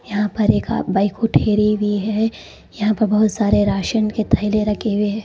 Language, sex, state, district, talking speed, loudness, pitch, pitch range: Hindi, female, Karnataka, Koppal, 195 wpm, -18 LUFS, 210 Hz, 205-215 Hz